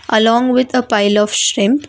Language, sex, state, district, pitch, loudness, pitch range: English, female, Karnataka, Bangalore, 230 Hz, -13 LUFS, 210-250 Hz